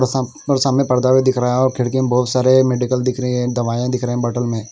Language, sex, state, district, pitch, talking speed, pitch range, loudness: Hindi, male, Bihar, West Champaran, 125 Hz, 305 wpm, 125-130 Hz, -17 LUFS